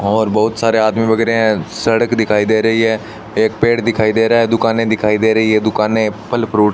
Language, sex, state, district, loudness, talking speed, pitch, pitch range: Hindi, male, Rajasthan, Bikaner, -14 LUFS, 230 wpm, 110 Hz, 110-115 Hz